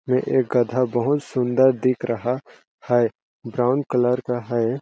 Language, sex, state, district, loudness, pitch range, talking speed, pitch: Hindi, male, Chhattisgarh, Balrampur, -21 LUFS, 120-130 Hz, 150 wpm, 125 Hz